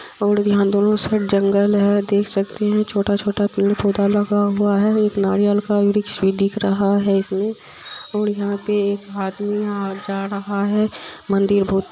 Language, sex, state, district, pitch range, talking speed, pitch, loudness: Maithili, female, Bihar, Supaul, 200-205 Hz, 160 wpm, 205 Hz, -19 LUFS